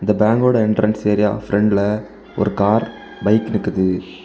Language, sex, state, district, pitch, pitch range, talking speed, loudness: Tamil, male, Tamil Nadu, Kanyakumari, 105 Hz, 100-110 Hz, 125 wpm, -17 LUFS